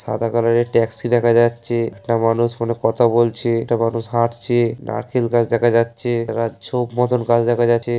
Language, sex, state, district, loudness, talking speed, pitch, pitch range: Bengali, male, West Bengal, Paschim Medinipur, -18 LUFS, 190 wpm, 115 Hz, 115-120 Hz